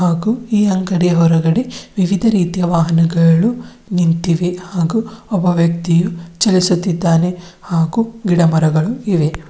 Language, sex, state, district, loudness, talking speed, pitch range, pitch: Kannada, female, Karnataka, Bidar, -15 LUFS, 95 wpm, 170-195 Hz, 175 Hz